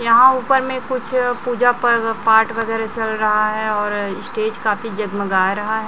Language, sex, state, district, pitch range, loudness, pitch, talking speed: Hindi, male, Chhattisgarh, Raipur, 215-245 Hz, -18 LUFS, 225 Hz, 165 wpm